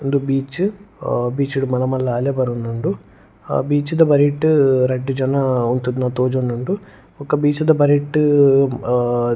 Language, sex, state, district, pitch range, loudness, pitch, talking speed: Tulu, male, Karnataka, Dakshina Kannada, 125-145 Hz, -18 LUFS, 135 Hz, 130 wpm